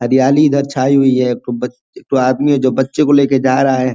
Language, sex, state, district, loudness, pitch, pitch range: Hindi, male, Uttar Pradesh, Ghazipur, -13 LUFS, 135 Hz, 130-140 Hz